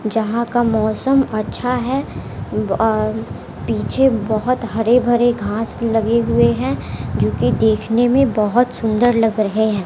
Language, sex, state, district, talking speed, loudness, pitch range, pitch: Hindi, female, Bihar, West Champaran, 135 wpm, -17 LUFS, 205-240 Hz, 225 Hz